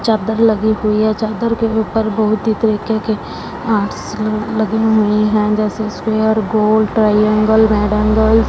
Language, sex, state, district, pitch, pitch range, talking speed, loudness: Hindi, female, Punjab, Fazilka, 215 Hz, 215-220 Hz, 165 wpm, -15 LUFS